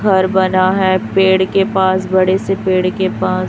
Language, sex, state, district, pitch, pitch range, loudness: Hindi, female, Chhattisgarh, Raipur, 190 Hz, 185-190 Hz, -14 LUFS